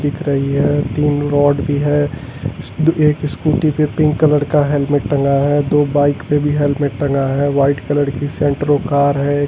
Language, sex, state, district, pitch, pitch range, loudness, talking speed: Hindi, male, Delhi, New Delhi, 145 Hz, 140-150 Hz, -15 LUFS, 185 wpm